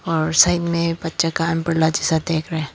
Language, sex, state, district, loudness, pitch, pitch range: Hindi, female, Tripura, Dhalai, -19 LUFS, 165 Hz, 160-170 Hz